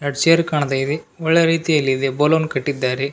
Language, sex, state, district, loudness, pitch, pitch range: Kannada, male, Karnataka, Raichur, -18 LUFS, 145 Hz, 135-160 Hz